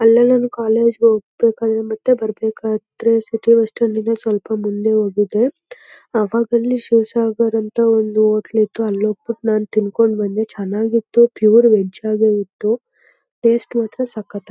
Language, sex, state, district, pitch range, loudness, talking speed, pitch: Kannada, female, Karnataka, Mysore, 215-230 Hz, -17 LUFS, 130 wpm, 220 Hz